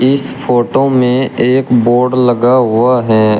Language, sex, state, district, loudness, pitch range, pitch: Hindi, male, Uttar Pradesh, Shamli, -11 LUFS, 120-130 Hz, 125 Hz